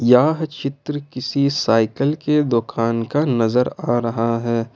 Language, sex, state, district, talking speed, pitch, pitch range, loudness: Hindi, male, Jharkhand, Ranchi, 140 wpm, 125 Hz, 115-145 Hz, -19 LUFS